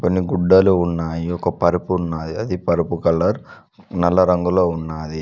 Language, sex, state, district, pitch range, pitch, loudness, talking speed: Telugu, male, Telangana, Mahabubabad, 80-90 Hz, 85 Hz, -18 LUFS, 125 wpm